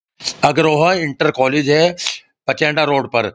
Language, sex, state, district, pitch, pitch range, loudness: Hindi, male, Uttar Pradesh, Muzaffarnagar, 150 Hz, 135-160 Hz, -16 LUFS